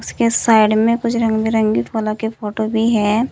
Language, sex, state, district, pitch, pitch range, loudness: Hindi, female, Uttar Pradesh, Saharanpur, 220 Hz, 215-230 Hz, -16 LUFS